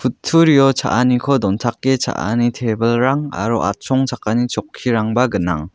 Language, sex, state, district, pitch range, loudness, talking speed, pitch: Garo, male, Meghalaya, West Garo Hills, 110-130 Hz, -17 LUFS, 95 wpm, 120 Hz